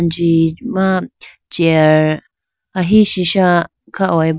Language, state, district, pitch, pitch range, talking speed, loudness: Idu Mishmi, Arunachal Pradesh, Lower Dibang Valley, 170 Hz, 165-190 Hz, 110 wpm, -14 LUFS